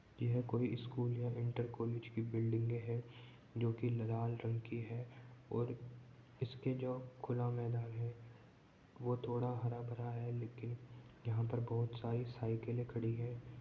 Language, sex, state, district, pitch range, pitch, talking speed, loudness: Hindi, male, Uttar Pradesh, Jyotiba Phule Nagar, 115-120 Hz, 120 Hz, 140 wpm, -42 LUFS